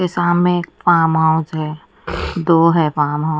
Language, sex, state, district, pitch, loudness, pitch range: Hindi, female, Odisha, Nuapada, 165 Hz, -16 LUFS, 155-175 Hz